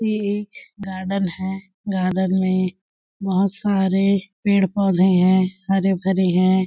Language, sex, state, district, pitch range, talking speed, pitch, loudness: Hindi, female, Chhattisgarh, Balrampur, 185-195 Hz, 115 wpm, 190 Hz, -20 LUFS